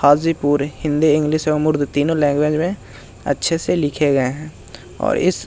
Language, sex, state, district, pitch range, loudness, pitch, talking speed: Hindi, male, Bihar, Jahanabad, 145-155 Hz, -18 LUFS, 150 Hz, 175 wpm